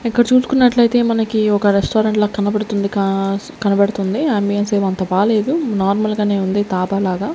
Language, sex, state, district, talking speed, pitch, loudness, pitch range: Telugu, female, Andhra Pradesh, Sri Satya Sai, 140 wpm, 205 Hz, -16 LUFS, 200-225 Hz